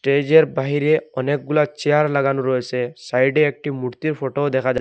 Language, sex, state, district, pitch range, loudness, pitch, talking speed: Bengali, male, Assam, Hailakandi, 130-150 Hz, -19 LUFS, 140 Hz, 150 wpm